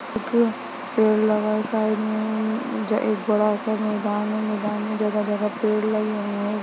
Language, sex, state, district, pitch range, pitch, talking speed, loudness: Hindi, female, Chhattisgarh, Sarguja, 210-215 Hz, 215 Hz, 170 wpm, -23 LUFS